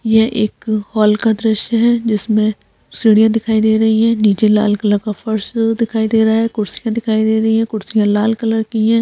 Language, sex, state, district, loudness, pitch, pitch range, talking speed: Hindi, female, Chhattisgarh, Korba, -15 LUFS, 220 Hz, 215-225 Hz, 205 wpm